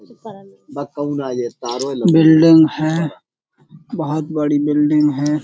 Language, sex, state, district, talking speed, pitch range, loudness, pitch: Hindi, male, Uttar Pradesh, Budaun, 65 wpm, 145-160 Hz, -16 LUFS, 150 Hz